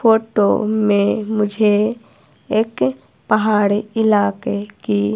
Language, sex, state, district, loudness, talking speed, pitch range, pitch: Hindi, female, Himachal Pradesh, Shimla, -17 LUFS, 80 wpm, 200-220 Hz, 210 Hz